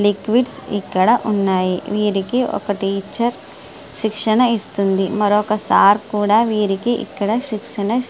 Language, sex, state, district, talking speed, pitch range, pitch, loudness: Telugu, female, Andhra Pradesh, Guntur, 105 wpm, 200-230 Hz, 210 Hz, -18 LUFS